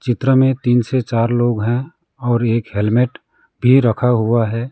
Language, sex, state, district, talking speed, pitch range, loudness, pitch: Hindi, male, West Bengal, Alipurduar, 180 wpm, 115-125 Hz, -16 LUFS, 120 Hz